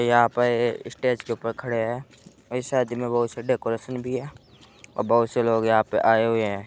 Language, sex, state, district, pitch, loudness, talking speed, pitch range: Hindi, male, Uttar Pradesh, Muzaffarnagar, 120 Hz, -24 LUFS, 215 wpm, 115-125 Hz